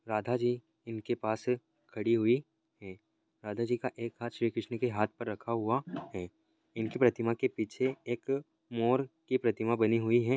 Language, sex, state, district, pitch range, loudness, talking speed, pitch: Hindi, male, Maharashtra, Sindhudurg, 110-125 Hz, -33 LUFS, 175 wpm, 115 Hz